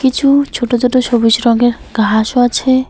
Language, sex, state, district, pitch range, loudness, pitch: Bengali, female, West Bengal, Alipurduar, 235-260 Hz, -12 LUFS, 245 Hz